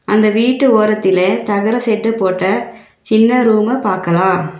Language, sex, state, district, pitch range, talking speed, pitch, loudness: Tamil, female, Tamil Nadu, Nilgiris, 190-225 Hz, 115 wpm, 215 Hz, -13 LUFS